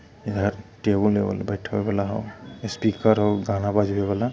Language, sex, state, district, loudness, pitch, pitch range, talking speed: Hindi, male, Bihar, Lakhisarai, -24 LUFS, 105 Hz, 100-110 Hz, 150 wpm